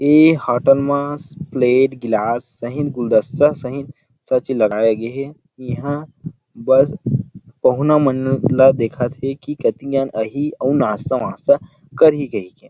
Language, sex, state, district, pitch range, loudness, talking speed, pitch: Chhattisgarhi, male, Chhattisgarh, Rajnandgaon, 125-145 Hz, -17 LUFS, 130 wpm, 135 Hz